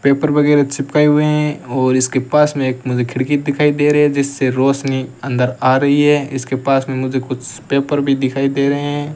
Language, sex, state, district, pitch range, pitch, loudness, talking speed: Hindi, male, Rajasthan, Bikaner, 130-145 Hz, 140 Hz, -15 LUFS, 215 wpm